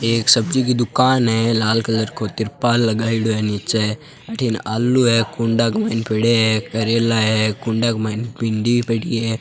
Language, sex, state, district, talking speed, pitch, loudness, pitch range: Marwari, male, Rajasthan, Churu, 185 wpm, 115 Hz, -18 LUFS, 110-115 Hz